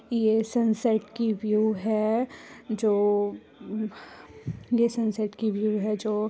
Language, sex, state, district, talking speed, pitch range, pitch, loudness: Hindi, female, Bihar, Purnia, 115 wpm, 210-225 Hz, 215 Hz, -26 LUFS